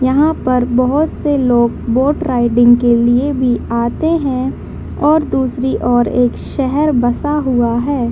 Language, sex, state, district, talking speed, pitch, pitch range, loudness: Hindi, female, Bihar, Madhepura, 150 wpm, 255 Hz, 240-285 Hz, -14 LUFS